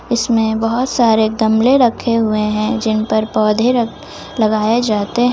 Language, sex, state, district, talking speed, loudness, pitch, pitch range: Hindi, female, Jharkhand, Ranchi, 135 wpm, -15 LUFS, 225 Hz, 215-240 Hz